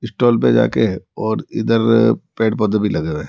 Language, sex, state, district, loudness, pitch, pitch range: Hindi, male, Rajasthan, Jaipur, -17 LUFS, 115 Hz, 105-115 Hz